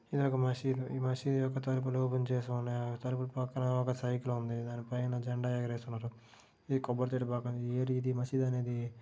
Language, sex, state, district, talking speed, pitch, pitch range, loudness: Telugu, male, Andhra Pradesh, Srikakulam, 180 wpm, 125 Hz, 120-130 Hz, -35 LUFS